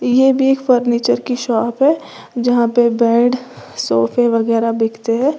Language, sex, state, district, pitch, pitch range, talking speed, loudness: Hindi, female, Uttar Pradesh, Lalitpur, 240 Hz, 230-255 Hz, 165 wpm, -15 LUFS